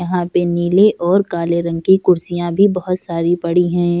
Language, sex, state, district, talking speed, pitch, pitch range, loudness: Hindi, female, Bihar, Samastipur, 195 wpm, 175 Hz, 170-185 Hz, -16 LUFS